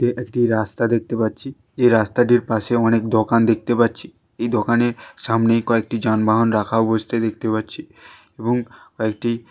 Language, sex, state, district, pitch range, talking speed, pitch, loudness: Bengali, male, West Bengal, Jalpaiguri, 110-120 Hz, 145 wpm, 115 Hz, -19 LUFS